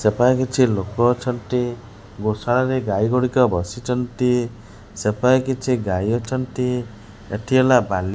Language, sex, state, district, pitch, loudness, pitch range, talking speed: Odia, male, Odisha, Khordha, 120 Hz, -20 LUFS, 105-125 Hz, 110 wpm